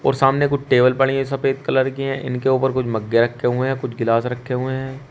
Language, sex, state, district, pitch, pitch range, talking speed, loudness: Hindi, male, Uttar Pradesh, Shamli, 130 Hz, 125-135 Hz, 260 wpm, -19 LUFS